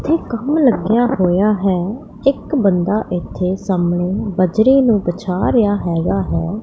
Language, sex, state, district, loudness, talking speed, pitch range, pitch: Punjabi, female, Punjab, Pathankot, -16 LUFS, 125 wpm, 180-235 Hz, 200 Hz